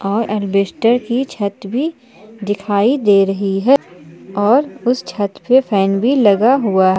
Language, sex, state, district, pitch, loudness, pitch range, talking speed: Hindi, female, Jharkhand, Palamu, 210 Hz, -15 LUFS, 200-250 Hz, 135 wpm